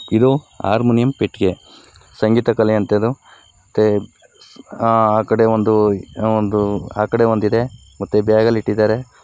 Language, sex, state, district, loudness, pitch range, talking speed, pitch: Kannada, male, Karnataka, Mysore, -17 LUFS, 105-115 Hz, 115 wpm, 110 Hz